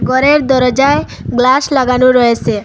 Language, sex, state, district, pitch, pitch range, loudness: Bengali, female, Assam, Hailakandi, 255 Hz, 250-275 Hz, -11 LUFS